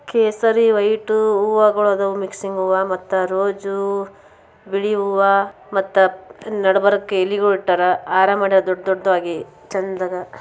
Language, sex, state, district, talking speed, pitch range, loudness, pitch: Kannada, female, Karnataka, Bijapur, 105 wpm, 190-205 Hz, -18 LUFS, 195 Hz